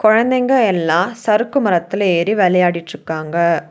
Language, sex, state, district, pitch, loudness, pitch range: Tamil, female, Tamil Nadu, Nilgiris, 185 Hz, -16 LUFS, 170-220 Hz